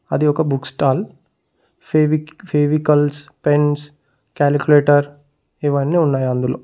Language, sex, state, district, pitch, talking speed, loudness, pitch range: Telugu, male, Telangana, Mahabubabad, 145 Hz, 110 wpm, -17 LUFS, 145-150 Hz